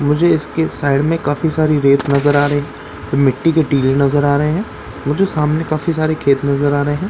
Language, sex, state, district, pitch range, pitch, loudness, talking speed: Hindi, male, Bihar, Katihar, 140-155 Hz, 145 Hz, -15 LUFS, 210 wpm